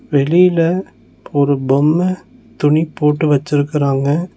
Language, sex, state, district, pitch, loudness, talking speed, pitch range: Tamil, male, Tamil Nadu, Nilgiris, 150 Hz, -15 LUFS, 85 wpm, 140-165 Hz